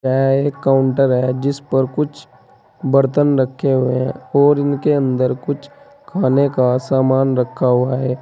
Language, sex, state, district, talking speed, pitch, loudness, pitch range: Hindi, male, Uttar Pradesh, Saharanpur, 155 wpm, 135 Hz, -16 LUFS, 130-140 Hz